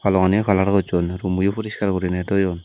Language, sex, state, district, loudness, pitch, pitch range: Chakma, male, Tripura, Dhalai, -20 LUFS, 95 Hz, 90-100 Hz